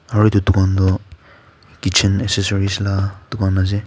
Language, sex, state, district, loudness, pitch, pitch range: Nagamese, male, Nagaland, Kohima, -17 LUFS, 100 Hz, 95-105 Hz